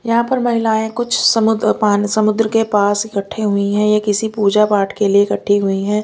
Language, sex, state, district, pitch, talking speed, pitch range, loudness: Hindi, female, Delhi, New Delhi, 210 Hz, 210 wpm, 205-225 Hz, -15 LUFS